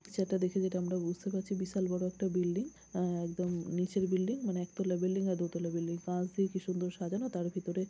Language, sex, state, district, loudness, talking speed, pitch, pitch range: Bengali, female, West Bengal, Kolkata, -35 LUFS, 205 wpm, 185 Hz, 180-190 Hz